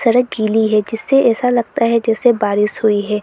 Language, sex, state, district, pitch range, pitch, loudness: Hindi, female, Arunachal Pradesh, Lower Dibang Valley, 215-240 Hz, 225 Hz, -15 LUFS